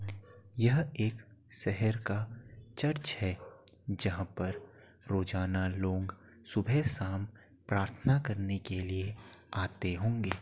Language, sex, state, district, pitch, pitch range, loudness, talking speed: Hindi, male, Uttar Pradesh, Etah, 100 Hz, 95-115 Hz, -33 LUFS, 105 wpm